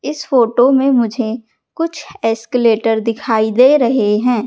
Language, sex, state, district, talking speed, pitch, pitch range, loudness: Hindi, female, Madhya Pradesh, Katni, 135 wpm, 240 Hz, 225-260 Hz, -14 LUFS